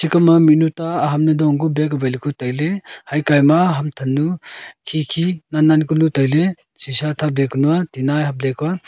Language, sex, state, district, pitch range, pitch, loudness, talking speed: Wancho, male, Arunachal Pradesh, Longding, 145-165 Hz, 155 Hz, -17 LUFS, 175 wpm